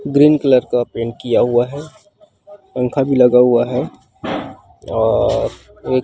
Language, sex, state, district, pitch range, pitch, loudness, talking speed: Chhattisgarhi, female, Chhattisgarh, Rajnandgaon, 125-150 Hz, 130 Hz, -16 LUFS, 150 wpm